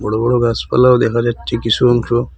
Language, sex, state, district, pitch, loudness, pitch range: Bengali, male, Assam, Hailakandi, 120 Hz, -14 LUFS, 115-120 Hz